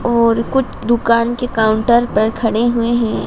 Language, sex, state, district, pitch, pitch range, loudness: Hindi, female, Madhya Pradesh, Dhar, 235 Hz, 225-240 Hz, -15 LUFS